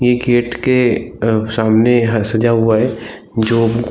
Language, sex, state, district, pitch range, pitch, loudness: Hindi, male, Chhattisgarh, Bilaspur, 110-120 Hz, 115 Hz, -14 LUFS